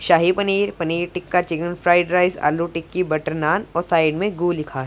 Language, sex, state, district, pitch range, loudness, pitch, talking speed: Hindi, female, Punjab, Pathankot, 165-180 Hz, -20 LUFS, 175 Hz, 195 wpm